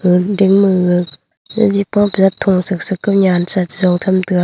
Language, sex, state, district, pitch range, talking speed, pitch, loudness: Wancho, female, Arunachal Pradesh, Longding, 180-200 Hz, 205 wpm, 190 Hz, -14 LUFS